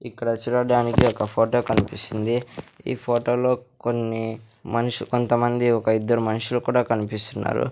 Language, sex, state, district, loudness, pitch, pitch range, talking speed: Telugu, male, Andhra Pradesh, Sri Satya Sai, -23 LUFS, 120 Hz, 110-120 Hz, 125 wpm